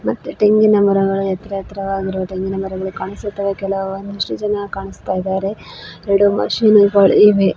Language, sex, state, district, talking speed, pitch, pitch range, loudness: Kannada, female, Karnataka, Koppal, 135 wpm, 195 Hz, 195-205 Hz, -16 LUFS